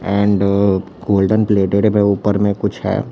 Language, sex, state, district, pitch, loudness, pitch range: Hindi, male, Chhattisgarh, Raipur, 100 Hz, -16 LUFS, 100-105 Hz